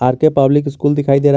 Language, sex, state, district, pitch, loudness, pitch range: Hindi, male, Jharkhand, Garhwa, 145 Hz, -14 LUFS, 135-145 Hz